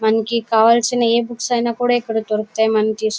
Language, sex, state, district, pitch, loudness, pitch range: Telugu, female, Karnataka, Bellary, 225 Hz, -17 LUFS, 220-235 Hz